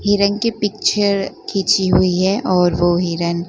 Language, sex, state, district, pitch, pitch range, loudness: Hindi, female, Gujarat, Gandhinagar, 195 Hz, 175-205 Hz, -16 LUFS